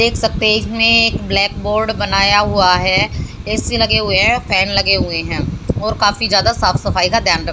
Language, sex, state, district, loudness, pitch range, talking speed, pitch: Hindi, female, Haryana, Jhajjar, -14 LUFS, 195-225 Hz, 190 wpm, 210 Hz